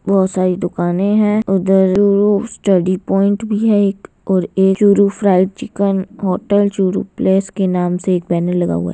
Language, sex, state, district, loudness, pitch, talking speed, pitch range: Hindi, female, Rajasthan, Churu, -15 LUFS, 195 Hz, 175 wpm, 185-200 Hz